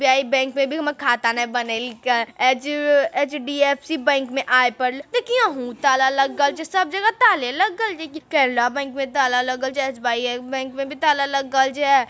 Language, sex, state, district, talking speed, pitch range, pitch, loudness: Magahi, female, Bihar, Jamui, 205 wpm, 255-295 Hz, 275 Hz, -20 LUFS